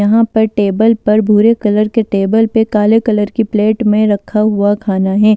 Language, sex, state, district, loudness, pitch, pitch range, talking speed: Hindi, female, Delhi, New Delhi, -12 LUFS, 215 Hz, 205-225 Hz, 200 wpm